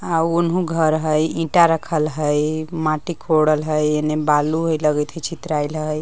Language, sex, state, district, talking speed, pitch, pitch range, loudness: Magahi, female, Jharkhand, Palamu, 190 wpm, 155 Hz, 150-165 Hz, -19 LUFS